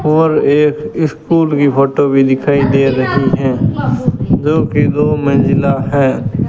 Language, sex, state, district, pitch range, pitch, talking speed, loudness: Hindi, male, Rajasthan, Bikaner, 135-150 Hz, 145 Hz, 140 wpm, -12 LUFS